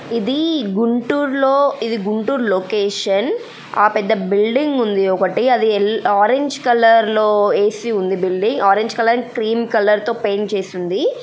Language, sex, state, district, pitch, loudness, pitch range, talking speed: Telugu, female, Andhra Pradesh, Guntur, 220 Hz, -16 LUFS, 205-245 Hz, 145 wpm